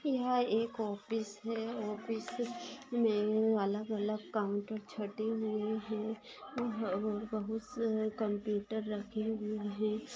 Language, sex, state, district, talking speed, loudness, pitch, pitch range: Hindi, female, Maharashtra, Chandrapur, 105 wpm, -36 LUFS, 215 Hz, 210-225 Hz